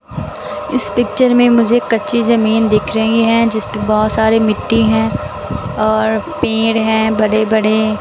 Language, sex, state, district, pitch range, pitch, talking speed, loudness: Hindi, female, Bihar, West Champaran, 215-230 Hz, 220 Hz, 150 wpm, -14 LUFS